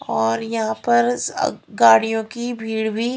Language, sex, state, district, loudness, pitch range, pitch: Hindi, female, Haryana, Rohtak, -19 LUFS, 220-235 Hz, 225 Hz